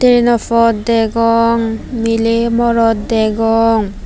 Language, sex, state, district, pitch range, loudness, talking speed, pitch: Chakma, female, Tripura, Unakoti, 225-230 Hz, -13 LUFS, 90 wpm, 230 Hz